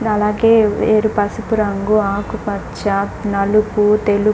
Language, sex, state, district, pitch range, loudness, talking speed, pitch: Telugu, female, Andhra Pradesh, Krishna, 205-215 Hz, -16 LUFS, 95 wpm, 210 Hz